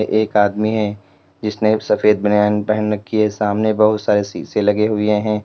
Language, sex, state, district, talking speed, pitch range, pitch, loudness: Hindi, male, Uttar Pradesh, Lalitpur, 175 wpm, 105-110 Hz, 105 Hz, -17 LUFS